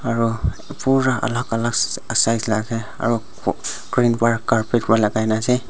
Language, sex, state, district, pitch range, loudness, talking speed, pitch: Nagamese, male, Nagaland, Dimapur, 110-120 Hz, -20 LUFS, 135 wpm, 115 Hz